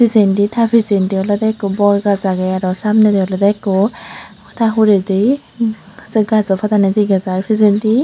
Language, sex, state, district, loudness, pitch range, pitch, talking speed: Chakma, female, Tripura, Unakoti, -14 LUFS, 195-220 Hz, 205 Hz, 155 wpm